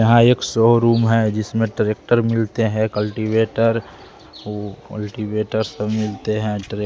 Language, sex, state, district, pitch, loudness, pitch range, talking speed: Hindi, male, Bihar, West Champaran, 110 Hz, -19 LUFS, 105-115 Hz, 130 wpm